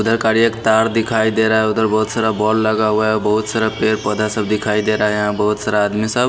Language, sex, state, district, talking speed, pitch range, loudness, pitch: Hindi, male, Haryana, Rohtak, 275 wpm, 105-110 Hz, -16 LUFS, 110 Hz